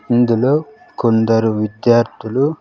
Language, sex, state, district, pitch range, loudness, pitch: Telugu, male, Andhra Pradesh, Sri Satya Sai, 115-135 Hz, -16 LUFS, 120 Hz